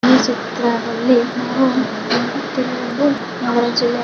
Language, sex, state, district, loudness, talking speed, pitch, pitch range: Kannada, female, Karnataka, Chamarajanagar, -18 LUFS, 90 wpm, 245 Hz, 235-255 Hz